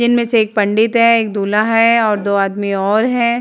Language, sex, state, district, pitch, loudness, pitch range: Hindi, female, Uttar Pradesh, Jalaun, 220 Hz, -14 LUFS, 205-230 Hz